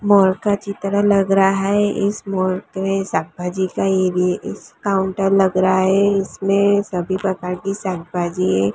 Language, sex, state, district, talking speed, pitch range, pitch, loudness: Hindi, female, Gujarat, Gandhinagar, 135 wpm, 185-200 Hz, 195 Hz, -18 LUFS